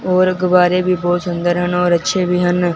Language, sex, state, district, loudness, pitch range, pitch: Hindi, male, Punjab, Fazilka, -15 LUFS, 175-185 Hz, 180 Hz